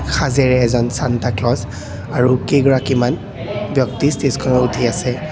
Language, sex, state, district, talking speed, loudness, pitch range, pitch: Assamese, male, Assam, Kamrup Metropolitan, 115 wpm, -17 LUFS, 120-135 Hz, 125 Hz